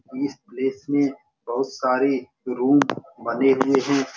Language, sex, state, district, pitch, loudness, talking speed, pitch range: Hindi, male, Bihar, Saran, 135 Hz, -22 LUFS, 130 wpm, 130-140 Hz